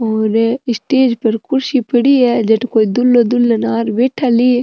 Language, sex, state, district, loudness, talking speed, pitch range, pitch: Rajasthani, female, Rajasthan, Nagaur, -13 LUFS, 180 wpm, 225-250 Hz, 240 Hz